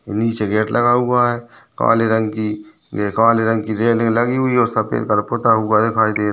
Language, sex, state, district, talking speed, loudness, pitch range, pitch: Hindi, male, Chhattisgarh, Balrampur, 235 wpm, -17 LUFS, 110-120 Hz, 115 Hz